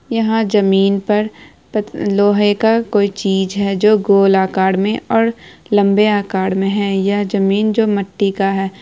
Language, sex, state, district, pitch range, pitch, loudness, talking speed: Hindi, female, Bihar, Araria, 195-215 Hz, 200 Hz, -15 LUFS, 155 wpm